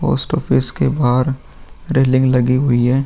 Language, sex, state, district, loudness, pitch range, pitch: Hindi, male, Bihar, Vaishali, -16 LUFS, 125-135 Hz, 130 Hz